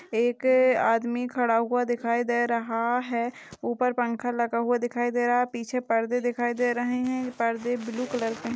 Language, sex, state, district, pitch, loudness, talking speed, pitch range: Hindi, female, Chhattisgarh, Balrampur, 240 Hz, -26 LUFS, 180 wpm, 235-245 Hz